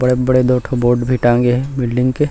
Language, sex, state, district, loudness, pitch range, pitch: Chhattisgarhi, male, Chhattisgarh, Rajnandgaon, -15 LUFS, 120-130 Hz, 125 Hz